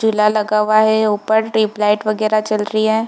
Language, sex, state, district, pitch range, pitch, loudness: Hindi, female, Bihar, Purnia, 215-220 Hz, 215 Hz, -16 LUFS